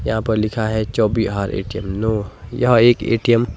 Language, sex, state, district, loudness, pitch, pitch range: Hindi, male, Himachal Pradesh, Shimla, -18 LUFS, 110 Hz, 105-115 Hz